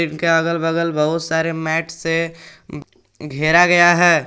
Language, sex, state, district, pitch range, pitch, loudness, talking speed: Hindi, male, Jharkhand, Garhwa, 160-170 Hz, 165 Hz, -16 LUFS, 140 wpm